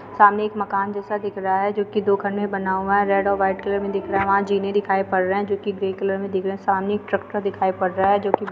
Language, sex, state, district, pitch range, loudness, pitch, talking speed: Hindi, female, Uttar Pradesh, Varanasi, 195-205 Hz, -21 LUFS, 200 Hz, 310 wpm